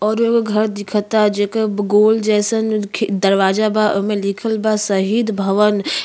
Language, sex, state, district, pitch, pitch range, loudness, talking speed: Bhojpuri, female, Uttar Pradesh, Ghazipur, 210 Hz, 205-215 Hz, -16 LUFS, 150 wpm